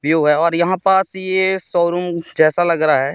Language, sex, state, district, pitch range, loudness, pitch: Hindi, male, Madhya Pradesh, Katni, 160-185 Hz, -16 LUFS, 170 Hz